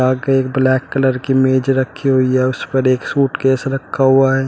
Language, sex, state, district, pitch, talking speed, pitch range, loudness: Hindi, male, Uttar Pradesh, Shamli, 130 Hz, 215 wpm, 130-135 Hz, -15 LUFS